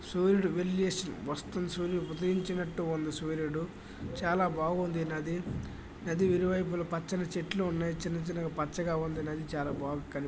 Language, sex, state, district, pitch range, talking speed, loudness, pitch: Telugu, male, Karnataka, Dharwad, 160-180 Hz, 130 wpm, -33 LUFS, 170 Hz